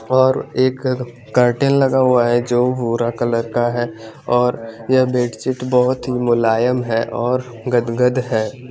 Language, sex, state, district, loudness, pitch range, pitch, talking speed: Hindi, male, Chandigarh, Chandigarh, -17 LUFS, 120-130 Hz, 125 Hz, 140 wpm